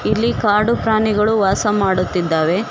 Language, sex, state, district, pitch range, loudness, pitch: Kannada, female, Karnataka, Koppal, 190-215 Hz, -16 LUFS, 210 Hz